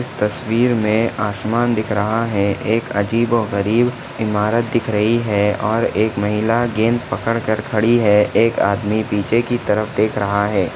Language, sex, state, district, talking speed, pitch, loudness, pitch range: Hindi, male, Maharashtra, Nagpur, 155 wpm, 110 Hz, -17 LUFS, 105-115 Hz